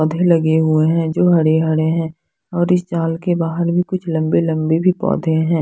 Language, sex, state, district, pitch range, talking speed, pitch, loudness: Hindi, female, Punjab, Fazilka, 160-175 Hz, 215 wpm, 165 Hz, -16 LUFS